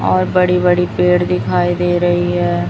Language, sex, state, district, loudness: Hindi, female, Chhattisgarh, Raipur, -14 LUFS